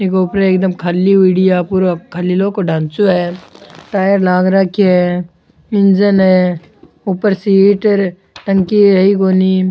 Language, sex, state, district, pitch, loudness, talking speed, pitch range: Rajasthani, male, Rajasthan, Churu, 190 Hz, -12 LUFS, 155 wpm, 180-195 Hz